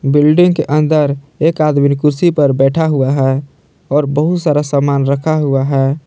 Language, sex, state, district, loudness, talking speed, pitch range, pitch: Hindi, male, Jharkhand, Palamu, -13 LUFS, 170 wpm, 140-155 Hz, 145 Hz